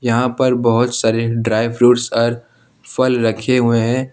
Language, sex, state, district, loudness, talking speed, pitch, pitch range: Hindi, male, Jharkhand, Ranchi, -16 LUFS, 160 wpm, 120 Hz, 115-125 Hz